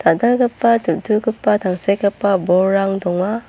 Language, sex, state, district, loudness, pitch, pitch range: Garo, female, Meghalaya, North Garo Hills, -17 LUFS, 200 Hz, 195-230 Hz